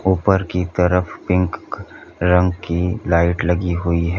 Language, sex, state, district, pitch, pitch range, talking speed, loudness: Hindi, male, Uttar Pradesh, Lalitpur, 90 Hz, 85-90 Hz, 145 wpm, -18 LUFS